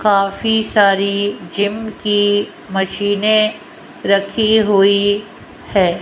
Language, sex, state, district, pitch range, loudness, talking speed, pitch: Hindi, female, Rajasthan, Jaipur, 195-215 Hz, -15 LUFS, 80 wpm, 205 Hz